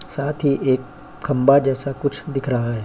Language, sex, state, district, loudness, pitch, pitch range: Hindi, male, Uttar Pradesh, Jyotiba Phule Nagar, -20 LUFS, 140 Hz, 130-140 Hz